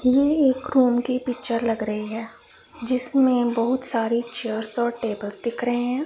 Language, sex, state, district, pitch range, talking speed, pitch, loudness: Hindi, female, Punjab, Pathankot, 230-255 Hz, 170 wpm, 240 Hz, -20 LUFS